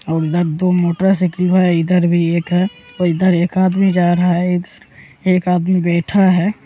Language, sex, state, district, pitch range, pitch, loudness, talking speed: Hindi, female, Bihar, Supaul, 175-185 Hz, 180 Hz, -15 LUFS, 190 wpm